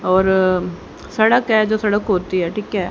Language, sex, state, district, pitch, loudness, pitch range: Hindi, female, Haryana, Jhajjar, 190 Hz, -17 LUFS, 185-215 Hz